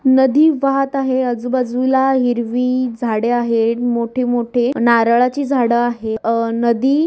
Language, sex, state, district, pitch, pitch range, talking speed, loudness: Marathi, female, Maharashtra, Sindhudurg, 245 Hz, 235-260 Hz, 120 wpm, -16 LUFS